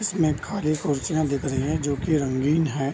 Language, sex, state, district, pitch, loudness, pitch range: Hindi, male, Bihar, Bhagalpur, 145 Hz, -24 LUFS, 140-155 Hz